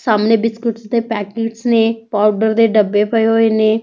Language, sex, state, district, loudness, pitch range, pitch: Punjabi, female, Punjab, Fazilka, -15 LUFS, 215-230 Hz, 225 Hz